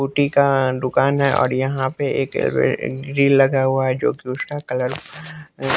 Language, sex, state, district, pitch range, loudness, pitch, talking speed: Hindi, male, Bihar, West Champaran, 130-140 Hz, -19 LUFS, 135 Hz, 175 wpm